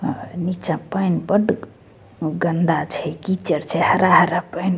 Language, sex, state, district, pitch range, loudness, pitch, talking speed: Maithili, female, Bihar, Begusarai, 155-185 Hz, -20 LUFS, 170 Hz, 125 wpm